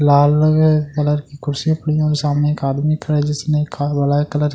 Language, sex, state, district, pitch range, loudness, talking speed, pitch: Hindi, male, Delhi, New Delhi, 145-150 Hz, -17 LUFS, 210 wpm, 150 Hz